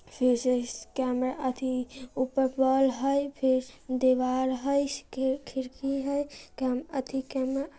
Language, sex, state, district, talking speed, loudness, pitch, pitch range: Maithili, female, Bihar, Samastipur, 110 wpm, -29 LUFS, 260 Hz, 255-270 Hz